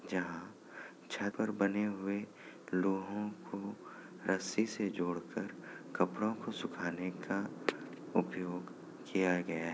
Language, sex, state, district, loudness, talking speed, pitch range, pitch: Hindi, male, Bihar, Kishanganj, -38 LUFS, 115 wpm, 90-105 Hz, 95 Hz